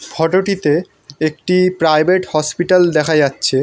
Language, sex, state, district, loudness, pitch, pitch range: Bengali, male, West Bengal, North 24 Parganas, -15 LUFS, 160 Hz, 150-185 Hz